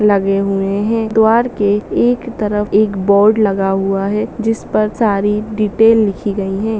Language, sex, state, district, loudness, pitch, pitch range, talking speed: Hindi, female, Andhra Pradesh, Chittoor, -14 LUFS, 210 Hz, 200-220 Hz, 130 wpm